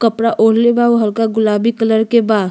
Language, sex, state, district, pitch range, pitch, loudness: Bhojpuri, female, Uttar Pradesh, Gorakhpur, 220-235 Hz, 225 Hz, -13 LUFS